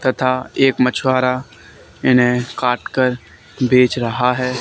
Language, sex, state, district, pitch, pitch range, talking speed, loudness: Hindi, male, Haryana, Charkhi Dadri, 125 Hz, 125-130 Hz, 115 wpm, -17 LUFS